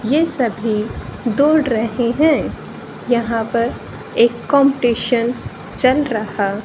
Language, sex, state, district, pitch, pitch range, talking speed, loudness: Hindi, female, Haryana, Rohtak, 240 Hz, 225-270 Hz, 100 wpm, -17 LUFS